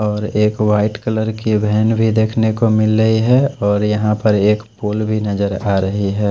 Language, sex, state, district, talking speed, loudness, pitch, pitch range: Hindi, male, Odisha, Khordha, 210 wpm, -16 LUFS, 105 Hz, 105-110 Hz